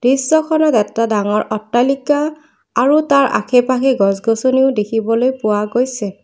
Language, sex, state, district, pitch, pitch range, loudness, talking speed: Assamese, female, Assam, Kamrup Metropolitan, 250 Hz, 215-275 Hz, -15 LUFS, 125 wpm